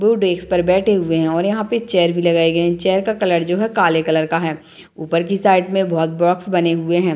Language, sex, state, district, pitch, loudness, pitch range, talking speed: Hindi, female, Bihar, Madhepura, 175 Hz, -17 LUFS, 165-190 Hz, 295 wpm